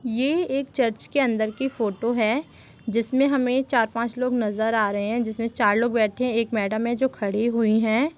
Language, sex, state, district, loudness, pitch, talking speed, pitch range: Hindi, female, Jharkhand, Sahebganj, -23 LUFS, 230 Hz, 210 wpm, 220-255 Hz